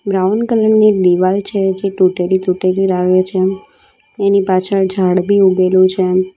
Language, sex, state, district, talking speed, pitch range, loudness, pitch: Gujarati, female, Gujarat, Valsad, 140 wpm, 185-200 Hz, -13 LUFS, 190 Hz